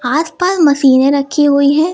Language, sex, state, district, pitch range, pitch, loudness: Hindi, female, Uttar Pradesh, Lucknow, 280-320 Hz, 290 Hz, -11 LUFS